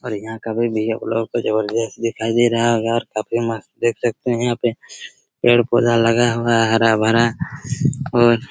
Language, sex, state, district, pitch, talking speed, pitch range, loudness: Hindi, male, Chhattisgarh, Raigarh, 115 Hz, 185 wpm, 115-120 Hz, -18 LUFS